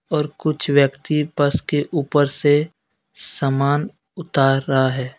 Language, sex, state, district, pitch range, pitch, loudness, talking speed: Hindi, male, Jharkhand, Deoghar, 135-150 Hz, 145 Hz, -19 LUFS, 125 wpm